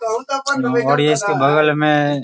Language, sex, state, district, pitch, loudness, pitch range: Hindi, male, Bihar, Sitamarhi, 150 Hz, -16 LUFS, 145-240 Hz